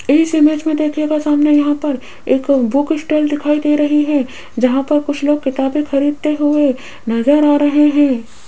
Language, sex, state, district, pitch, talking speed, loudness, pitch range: Hindi, female, Rajasthan, Jaipur, 295 Hz, 175 wpm, -15 LUFS, 275-300 Hz